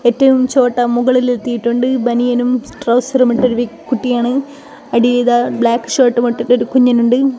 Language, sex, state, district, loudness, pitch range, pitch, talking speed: Malayalam, female, Kerala, Kozhikode, -14 LUFS, 240-255 Hz, 245 Hz, 130 wpm